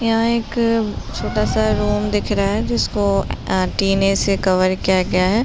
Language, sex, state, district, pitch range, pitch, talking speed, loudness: Hindi, female, Uttar Pradesh, Deoria, 185-225 Hz, 195 Hz, 175 wpm, -18 LUFS